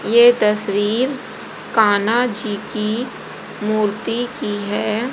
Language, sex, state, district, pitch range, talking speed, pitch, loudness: Hindi, female, Haryana, Jhajjar, 210-240 Hz, 95 wpm, 215 Hz, -18 LUFS